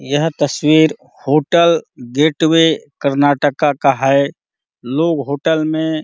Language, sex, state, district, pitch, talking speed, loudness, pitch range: Hindi, male, Chhattisgarh, Bastar, 150 Hz, 110 wpm, -15 LUFS, 140-160 Hz